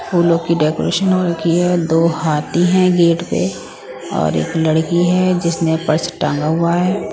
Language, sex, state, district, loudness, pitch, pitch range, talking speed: Hindi, female, Punjab, Pathankot, -16 LUFS, 170 Hz, 160-175 Hz, 170 wpm